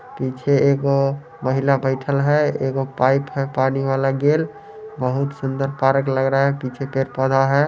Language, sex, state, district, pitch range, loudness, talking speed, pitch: Hindi, male, Bihar, Muzaffarpur, 135-140 Hz, -20 LUFS, 155 wpm, 135 Hz